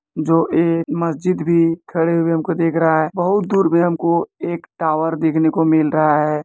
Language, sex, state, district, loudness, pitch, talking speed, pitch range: Maithili, male, Bihar, Kishanganj, -17 LUFS, 165 Hz, 195 wpm, 160-170 Hz